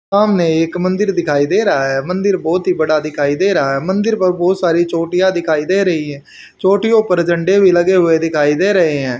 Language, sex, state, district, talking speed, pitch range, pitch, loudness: Hindi, male, Haryana, Charkhi Dadri, 220 wpm, 155-190 Hz, 175 Hz, -14 LUFS